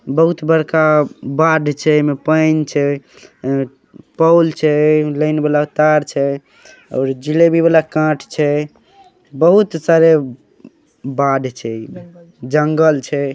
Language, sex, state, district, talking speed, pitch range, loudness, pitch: Maithili, male, Bihar, Saharsa, 110 wpm, 140-160 Hz, -15 LUFS, 150 Hz